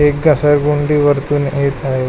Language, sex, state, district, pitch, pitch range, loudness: Marathi, male, Maharashtra, Pune, 145 Hz, 140-150 Hz, -14 LUFS